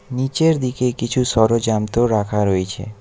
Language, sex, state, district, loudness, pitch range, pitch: Bengali, male, West Bengal, Alipurduar, -18 LUFS, 105-125 Hz, 115 Hz